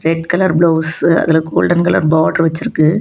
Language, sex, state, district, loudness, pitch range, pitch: Tamil, female, Tamil Nadu, Kanyakumari, -13 LUFS, 160-170 Hz, 165 Hz